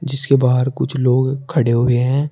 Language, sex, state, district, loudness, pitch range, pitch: Hindi, male, Uttar Pradesh, Shamli, -16 LUFS, 125-140 Hz, 130 Hz